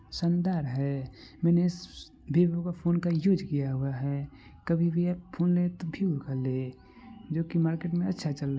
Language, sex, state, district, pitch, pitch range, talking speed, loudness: Maithili, male, Bihar, Supaul, 170 Hz, 140-175 Hz, 170 wpm, -29 LUFS